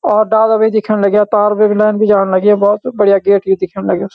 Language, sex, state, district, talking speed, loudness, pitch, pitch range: Garhwali, male, Uttarakhand, Uttarkashi, 275 wpm, -12 LUFS, 210 Hz, 200-215 Hz